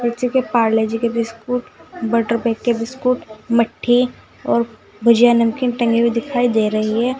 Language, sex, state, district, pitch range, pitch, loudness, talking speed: Hindi, female, Uttar Pradesh, Saharanpur, 230-245 Hz, 235 Hz, -18 LUFS, 150 wpm